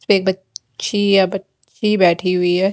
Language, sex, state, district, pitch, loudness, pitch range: Hindi, female, Haryana, Jhajjar, 190 Hz, -17 LUFS, 180-200 Hz